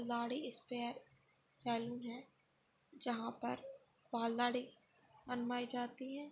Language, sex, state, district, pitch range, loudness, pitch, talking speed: Hindi, female, Goa, North and South Goa, 235-255 Hz, -40 LUFS, 245 Hz, 65 wpm